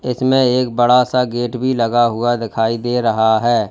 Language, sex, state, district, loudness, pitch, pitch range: Hindi, male, Uttar Pradesh, Lalitpur, -16 LUFS, 120 Hz, 115-125 Hz